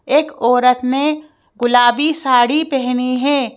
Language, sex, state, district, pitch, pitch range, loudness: Hindi, female, Madhya Pradesh, Bhopal, 260 Hz, 250-295 Hz, -15 LUFS